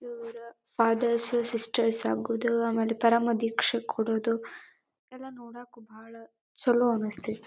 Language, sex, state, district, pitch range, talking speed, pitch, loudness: Kannada, female, Karnataka, Dharwad, 225-235 Hz, 95 wpm, 230 Hz, -27 LUFS